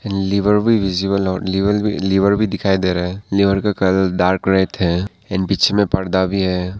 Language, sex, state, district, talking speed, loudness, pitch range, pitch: Hindi, male, Arunachal Pradesh, Papum Pare, 220 wpm, -17 LUFS, 95-100 Hz, 95 Hz